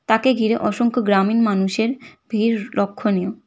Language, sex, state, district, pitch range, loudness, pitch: Bengali, female, West Bengal, Cooch Behar, 205-235 Hz, -19 LUFS, 220 Hz